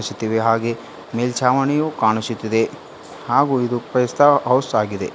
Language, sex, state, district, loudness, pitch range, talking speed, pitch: Kannada, female, Karnataka, Bidar, -19 LUFS, 110-130 Hz, 115 wpm, 120 Hz